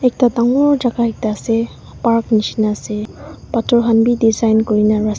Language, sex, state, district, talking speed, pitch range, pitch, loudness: Nagamese, female, Nagaland, Dimapur, 175 wpm, 215-240 Hz, 230 Hz, -16 LUFS